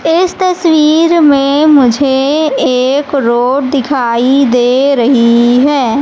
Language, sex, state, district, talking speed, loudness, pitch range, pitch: Hindi, female, Madhya Pradesh, Katni, 100 wpm, -9 LUFS, 250-300 Hz, 275 Hz